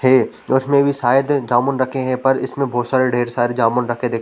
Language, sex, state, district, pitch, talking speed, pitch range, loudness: Hindi, male, Chhattisgarh, Korba, 130 Hz, 240 wpm, 120-135 Hz, -17 LUFS